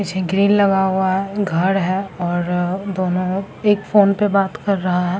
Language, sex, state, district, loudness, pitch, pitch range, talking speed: Hindi, female, Bihar, Samastipur, -18 LUFS, 190 Hz, 185-200 Hz, 175 wpm